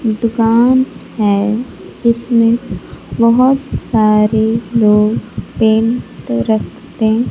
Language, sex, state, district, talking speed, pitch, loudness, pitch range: Hindi, female, Bihar, Kaimur, 65 wpm, 225 Hz, -13 LUFS, 215-235 Hz